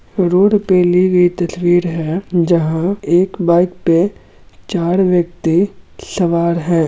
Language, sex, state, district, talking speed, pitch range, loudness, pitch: Hindi, male, Bihar, Gaya, 130 wpm, 170-185 Hz, -14 LUFS, 175 Hz